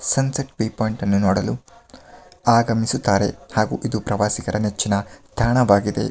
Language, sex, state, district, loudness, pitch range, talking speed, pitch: Kannada, male, Karnataka, Mysore, -20 LUFS, 100-120 Hz, 120 wpm, 105 Hz